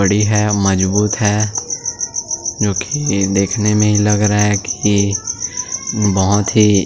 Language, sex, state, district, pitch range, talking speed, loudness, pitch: Hindi, male, Chhattisgarh, Sukma, 100-105 Hz, 140 wpm, -15 LUFS, 105 Hz